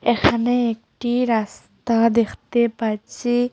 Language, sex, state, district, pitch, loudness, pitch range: Bengali, female, Assam, Hailakandi, 235 Hz, -20 LUFS, 225-240 Hz